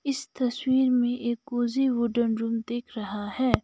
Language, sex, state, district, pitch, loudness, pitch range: Hindi, female, Sikkim, Gangtok, 240 Hz, -27 LUFS, 230-260 Hz